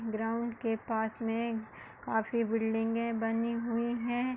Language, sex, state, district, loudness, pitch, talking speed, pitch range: Hindi, female, Uttar Pradesh, Hamirpur, -33 LUFS, 230 Hz, 125 wpm, 225-235 Hz